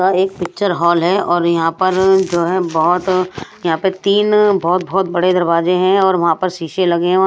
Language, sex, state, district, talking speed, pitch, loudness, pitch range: Hindi, female, Odisha, Sambalpur, 205 wpm, 185 Hz, -15 LUFS, 170-190 Hz